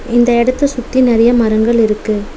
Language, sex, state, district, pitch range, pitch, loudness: Tamil, female, Tamil Nadu, Nilgiris, 220-250 Hz, 235 Hz, -12 LUFS